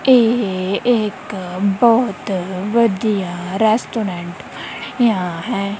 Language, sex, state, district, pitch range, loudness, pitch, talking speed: Punjabi, female, Punjab, Kapurthala, 185-230 Hz, -18 LUFS, 200 Hz, 70 wpm